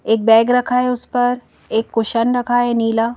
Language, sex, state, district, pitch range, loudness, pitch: Hindi, female, Madhya Pradesh, Bhopal, 225-245 Hz, -16 LUFS, 240 Hz